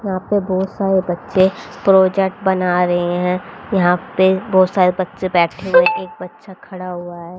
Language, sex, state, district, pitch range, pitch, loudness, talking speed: Hindi, female, Haryana, Rohtak, 180-190 Hz, 185 Hz, -16 LUFS, 170 wpm